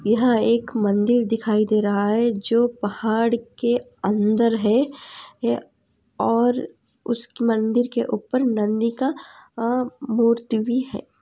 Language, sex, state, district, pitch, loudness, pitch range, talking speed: Hindi, female, Andhra Pradesh, Anantapur, 230 Hz, -21 LUFS, 220-245 Hz, 125 wpm